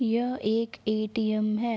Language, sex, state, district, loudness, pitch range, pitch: Hindi, female, Uttar Pradesh, Jalaun, -28 LUFS, 215-235 Hz, 225 Hz